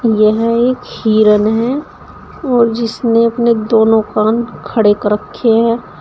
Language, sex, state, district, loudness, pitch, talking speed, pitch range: Hindi, female, Uttar Pradesh, Shamli, -13 LUFS, 225 Hz, 130 wpm, 215-235 Hz